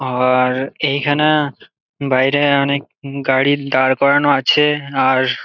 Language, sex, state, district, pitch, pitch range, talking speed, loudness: Bengali, male, West Bengal, Jalpaiguri, 140 Hz, 130-145 Hz, 110 wpm, -15 LUFS